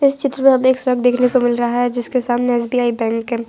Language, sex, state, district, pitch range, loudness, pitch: Hindi, female, Gujarat, Valsad, 240-255 Hz, -16 LUFS, 245 Hz